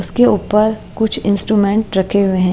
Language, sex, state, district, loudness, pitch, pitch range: Hindi, female, Maharashtra, Mumbai Suburban, -15 LUFS, 210 Hz, 200-220 Hz